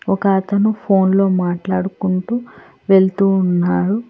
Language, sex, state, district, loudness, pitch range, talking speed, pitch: Telugu, female, Telangana, Hyderabad, -16 LUFS, 185-200 Hz, 90 wpm, 195 Hz